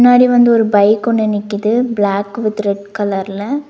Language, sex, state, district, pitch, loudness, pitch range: Tamil, female, Tamil Nadu, Nilgiris, 215 Hz, -14 LUFS, 205-235 Hz